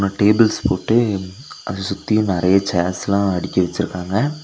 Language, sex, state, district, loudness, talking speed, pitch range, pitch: Tamil, male, Tamil Nadu, Nilgiris, -18 LUFS, 110 wpm, 95-110 Hz, 100 Hz